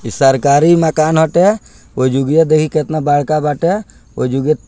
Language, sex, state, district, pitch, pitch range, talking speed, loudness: Bhojpuri, male, Bihar, Muzaffarpur, 155 Hz, 140-160 Hz, 130 wpm, -13 LUFS